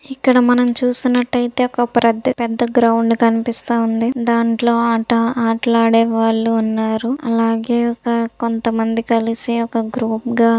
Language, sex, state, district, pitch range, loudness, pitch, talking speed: Telugu, female, Andhra Pradesh, Visakhapatnam, 230-240 Hz, -16 LUFS, 235 Hz, 95 wpm